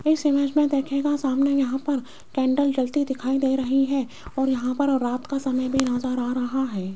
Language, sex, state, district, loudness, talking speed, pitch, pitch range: Hindi, female, Rajasthan, Jaipur, -23 LUFS, 215 wpm, 265 Hz, 255-280 Hz